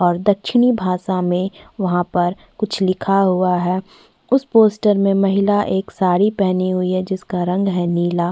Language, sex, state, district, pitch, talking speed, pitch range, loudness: Hindi, female, Chhattisgarh, Korba, 190 Hz, 175 wpm, 180-205 Hz, -18 LUFS